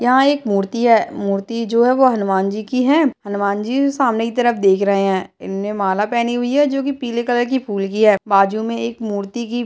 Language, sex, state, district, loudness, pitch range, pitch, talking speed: Hindi, female, Uttarakhand, Uttarkashi, -17 LUFS, 200-245 Hz, 230 Hz, 240 wpm